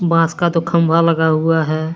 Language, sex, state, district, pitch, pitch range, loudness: Hindi, male, Jharkhand, Deoghar, 165 Hz, 160-170 Hz, -15 LUFS